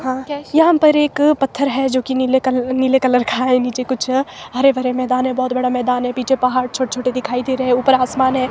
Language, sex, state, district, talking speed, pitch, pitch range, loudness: Hindi, female, Himachal Pradesh, Shimla, 245 wpm, 255 Hz, 255-265 Hz, -16 LUFS